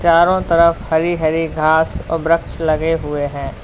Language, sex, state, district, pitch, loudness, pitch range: Hindi, male, Uttar Pradesh, Lalitpur, 165 Hz, -16 LUFS, 155-170 Hz